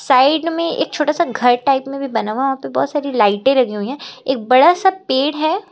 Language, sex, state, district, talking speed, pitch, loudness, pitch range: Hindi, female, Uttar Pradesh, Lucknow, 250 wpm, 270 Hz, -16 LUFS, 255-305 Hz